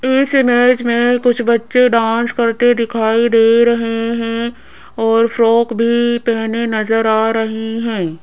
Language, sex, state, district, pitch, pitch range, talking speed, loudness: Hindi, female, Rajasthan, Jaipur, 230 Hz, 225-235 Hz, 140 wpm, -14 LUFS